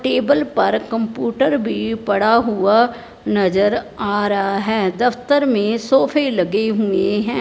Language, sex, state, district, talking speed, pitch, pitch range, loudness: Hindi, male, Punjab, Fazilka, 120 wpm, 225 Hz, 205-245 Hz, -17 LUFS